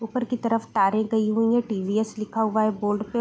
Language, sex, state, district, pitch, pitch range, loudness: Hindi, female, Uttar Pradesh, Deoria, 220 Hz, 215-230 Hz, -24 LUFS